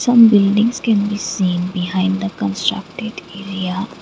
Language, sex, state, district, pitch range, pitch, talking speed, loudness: English, female, Assam, Kamrup Metropolitan, 185-215 Hz, 200 Hz, 135 wpm, -17 LUFS